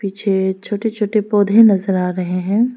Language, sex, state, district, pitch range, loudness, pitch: Hindi, female, Arunachal Pradesh, Lower Dibang Valley, 190-215 Hz, -16 LUFS, 205 Hz